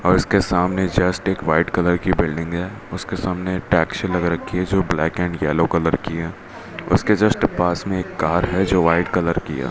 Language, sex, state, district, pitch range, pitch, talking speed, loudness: Hindi, male, Rajasthan, Bikaner, 85-95 Hz, 90 Hz, 215 wpm, -20 LUFS